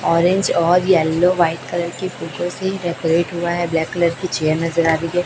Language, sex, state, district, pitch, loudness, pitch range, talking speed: Hindi, female, Chhattisgarh, Raipur, 170 Hz, -18 LUFS, 165-175 Hz, 205 wpm